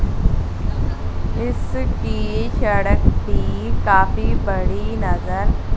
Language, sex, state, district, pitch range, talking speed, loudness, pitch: Hindi, female, Punjab, Fazilka, 85-95 Hz, 60 wpm, -21 LUFS, 90 Hz